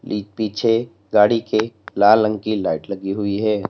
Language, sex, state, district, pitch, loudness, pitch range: Hindi, male, Uttar Pradesh, Lalitpur, 105 Hz, -19 LUFS, 100-110 Hz